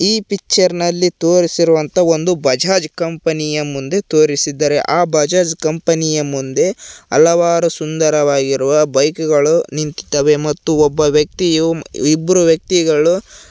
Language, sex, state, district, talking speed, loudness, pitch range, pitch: Kannada, male, Karnataka, Koppal, 95 wpm, -14 LUFS, 150-170 Hz, 160 Hz